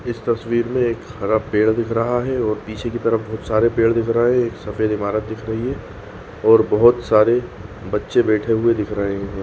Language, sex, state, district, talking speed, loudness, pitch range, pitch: Hindi, male, Maharashtra, Nagpur, 215 wpm, -19 LUFS, 105-115 Hz, 110 Hz